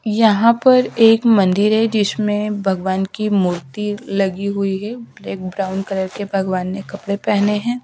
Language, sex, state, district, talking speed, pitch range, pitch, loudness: Hindi, female, Haryana, Rohtak, 160 wpm, 195-215 Hz, 205 Hz, -17 LUFS